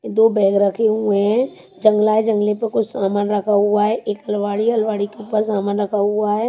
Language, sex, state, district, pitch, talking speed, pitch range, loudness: Hindi, female, Chhattisgarh, Raipur, 210 Hz, 210 wpm, 205-220 Hz, -18 LUFS